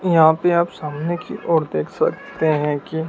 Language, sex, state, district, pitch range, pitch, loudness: Hindi, male, Madhya Pradesh, Dhar, 150-170 Hz, 160 Hz, -20 LUFS